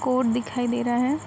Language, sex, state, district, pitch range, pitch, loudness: Hindi, female, Bihar, Araria, 240-255 Hz, 245 Hz, -24 LUFS